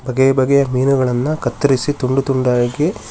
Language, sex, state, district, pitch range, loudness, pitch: Kannada, male, Karnataka, Shimoga, 125-140 Hz, -16 LUFS, 135 Hz